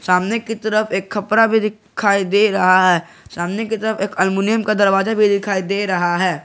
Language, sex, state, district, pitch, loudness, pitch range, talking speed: Hindi, male, Jharkhand, Garhwa, 200 Hz, -17 LUFS, 185-215 Hz, 205 wpm